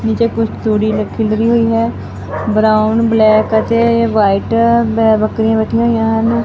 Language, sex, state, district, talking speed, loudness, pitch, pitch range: Punjabi, female, Punjab, Fazilka, 150 wpm, -13 LUFS, 225 Hz, 215-230 Hz